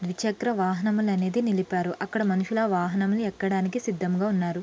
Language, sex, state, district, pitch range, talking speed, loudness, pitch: Telugu, female, Andhra Pradesh, Srikakulam, 185-215 Hz, 145 wpm, -26 LUFS, 195 Hz